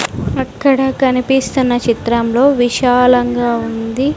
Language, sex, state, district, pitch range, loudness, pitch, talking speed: Telugu, female, Andhra Pradesh, Sri Satya Sai, 235-265 Hz, -14 LUFS, 250 Hz, 70 wpm